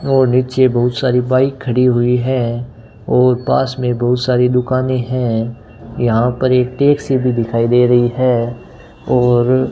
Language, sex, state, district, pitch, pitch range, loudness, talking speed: Hindi, male, Rajasthan, Bikaner, 125 Hz, 120-130 Hz, -14 LUFS, 160 wpm